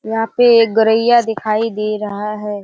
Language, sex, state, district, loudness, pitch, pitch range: Hindi, female, Bihar, Kishanganj, -15 LUFS, 220 Hz, 210-225 Hz